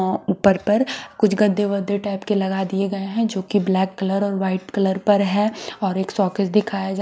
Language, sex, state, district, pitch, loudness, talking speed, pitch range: Hindi, female, Haryana, Charkhi Dadri, 195 Hz, -21 LUFS, 220 wpm, 190-205 Hz